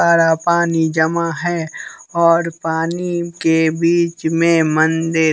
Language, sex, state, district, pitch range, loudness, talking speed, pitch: Hindi, male, Bihar, West Champaran, 160-170 Hz, -16 LUFS, 115 wpm, 165 Hz